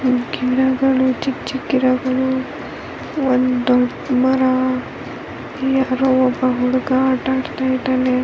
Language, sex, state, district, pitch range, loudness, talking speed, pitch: Kannada, female, Karnataka, Dharwad, 255-265 Hz, -18 LUFS, 95 wpm, 260 Hz